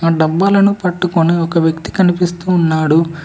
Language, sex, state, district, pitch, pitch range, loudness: Telugu, female, Telangana, Mahabubabad, 170 Hz, 165-180 Hz, -14 LUFS